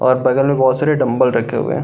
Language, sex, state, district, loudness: Hindi, male, Bihar, Gaya, -15 LUFS